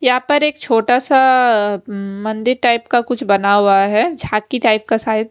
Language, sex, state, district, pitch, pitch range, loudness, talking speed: Hindi, female, Haryana, Rohtak, 230 Hz, 210-255 Hz, -14 LUFS, 190 wpm